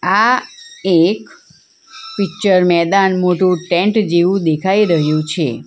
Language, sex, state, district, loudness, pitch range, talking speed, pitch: Gujarati, female, Gujarat, Valsad, -14 LUFS, 170-200 Hz, 105 wpm, 180 Hz